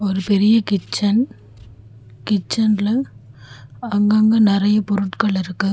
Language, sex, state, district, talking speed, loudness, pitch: Tamil, female, Tamil Nadu, Chennai, 85 wpm, -18 LUFS, 200 Hz